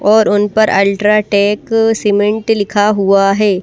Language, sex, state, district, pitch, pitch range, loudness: Hindi, female, Madhya Pradesh, Bhopal, 205 Hz, 200-215 Hz, -12 LUFS